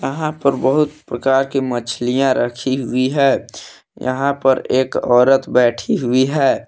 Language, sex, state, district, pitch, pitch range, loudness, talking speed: Hindi, male, Jharkhand, Palamu, 130 Hz, 125-135 Hz, -17 LUFS, 145 wpm